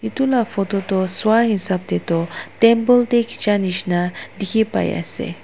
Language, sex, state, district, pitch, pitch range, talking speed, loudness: Nagamese, female, Nagaland, Dimapur, 205 Hz, 185-230 Hz, 130 wpm, -18 LUFS